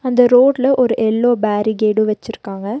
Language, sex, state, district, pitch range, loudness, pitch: Tamil, female, Tamil Nadu, Nilgiris, 215-250 Hz, -15 LUFS, 225 Hz